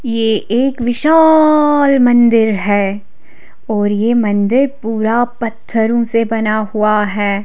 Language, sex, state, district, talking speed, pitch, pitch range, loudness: Hindi, female, Odisha, Khordha, 115 wpm, 225 Hz, 215-245 Hz, -13 LUFS